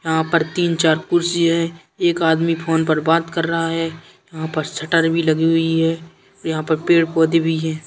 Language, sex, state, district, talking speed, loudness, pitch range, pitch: Bundeli, male, Uttar Pradesh, Jalaun, 200 wpm, -18 LUFS, 160-165 Hz, 165 Hz